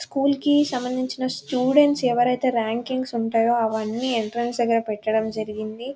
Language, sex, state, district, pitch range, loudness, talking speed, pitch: Telugu, female, Telangana, Nalgonda, 225-255 Hz, -22 LUFS, 130 wpm, 240 Hz